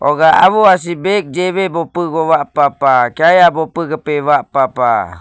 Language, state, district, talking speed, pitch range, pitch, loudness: Nyishi, Arunachal Pradesh, Papum Pare, 125 wpm, 145-175 Hz, 160 Hz, -12 LUFS